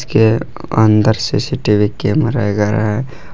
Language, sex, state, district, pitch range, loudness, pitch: Hindi, male, Jharkhand, Palamu, 105-125 Hz, -15 LUFS, 110 Hz